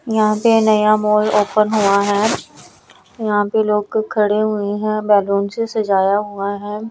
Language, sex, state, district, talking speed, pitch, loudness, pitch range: Hindi, female, Bihar, Patna, 155 wpm, 210 Hz, -16 LUFS, 205-215 Hz